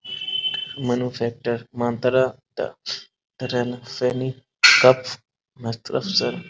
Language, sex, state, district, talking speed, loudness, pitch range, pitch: Hindi, male, Bihar, Muzaffarpur, 65 wpm, -21 LUFS, 120-130 Hz, 125 Hz